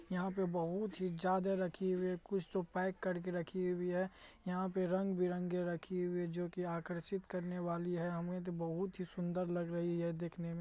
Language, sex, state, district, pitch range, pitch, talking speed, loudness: Hindi, male, Bihar, Madhepura, 175-185 Hz, 180 Hz, 205 wpm, -39 LUFS